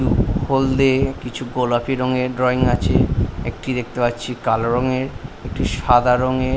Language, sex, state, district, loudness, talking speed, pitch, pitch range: Bengali, male, West Bengal, Paschim Medinipur, -19 LUFS, 130 wpm, 125 Hz, 120-130 Hz